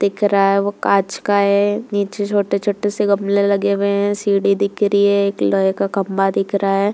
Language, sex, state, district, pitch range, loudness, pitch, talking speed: Hindi, female, Uttar Pradesh, Jalaun, 200-205 Hz, -17 LUFS, 200 Hz, 215 wpm